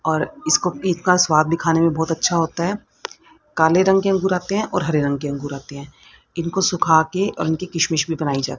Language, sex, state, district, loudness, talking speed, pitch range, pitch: Hindi, female, Haryana, Rohtak, -19 LUFS, 225 wpm, 155-185 Hz, 165 Hz